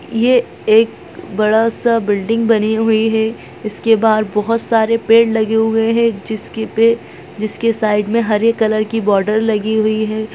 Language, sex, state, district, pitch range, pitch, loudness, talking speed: Hindi, male, Bihar, Gaya, 215-230 Hz, 220 Hz, -15 LUFS, 150 wpm